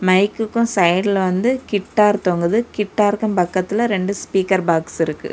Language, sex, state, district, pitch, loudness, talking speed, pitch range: Tamil, female, Tamil Nadu, Kanyakumari, 195 Hz, -18 LUFS, 125 wpm, 185-215 Hz